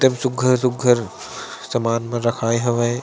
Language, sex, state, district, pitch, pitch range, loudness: Chhattisgarhi, male, Chhattisgarh, Sarguja, 120 Hz, 115-125 Hz, -19 LUFS